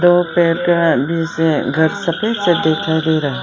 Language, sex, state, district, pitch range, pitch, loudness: Hindi, female, Arunachal Pradesh, Lower Dibang Valley, 160-175 Hz, 165 Hz, -15 LUFS